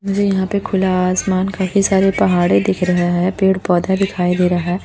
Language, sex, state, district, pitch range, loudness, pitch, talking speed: Hindi, female, Chhattisgarh, Raipur, 180-195 Hz, -16 LUFS, 185 Hz, 210 wpm